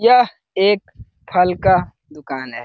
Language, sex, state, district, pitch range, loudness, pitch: Hindi, male, Bihar, Lakhisarai, 145-195 Hz, -17 LUFS, 180 Hz